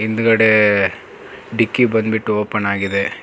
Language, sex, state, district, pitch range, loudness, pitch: Kannada, male, Karnataka, Bangalore, 100-110 Hz, -16 LUFS, 110 Hz